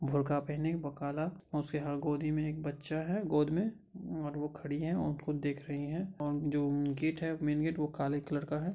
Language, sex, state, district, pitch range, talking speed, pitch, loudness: Hindi, male, Bihar, Madhepura, 145-160 Hz, 225 wpm, 150 Hz, -35 LUFS